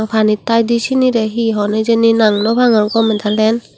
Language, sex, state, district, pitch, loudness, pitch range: Chakma, female, Tripura, Unakoti, 225 Hz, -13 LUFS, 215-230 Hz